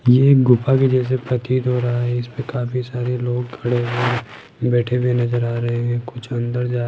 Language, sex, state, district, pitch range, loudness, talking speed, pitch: Hindi, male, Rajasthan, Jaipur, 120-125 Hz, -19 LUFS, 220 wpm, 125 Hz